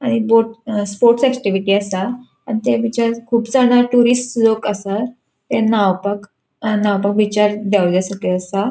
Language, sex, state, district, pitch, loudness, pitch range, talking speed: Konkani, female, Goa, North and South Goa, 215 Hz, -16 LUFS, 200-235 Hz, 145 wpm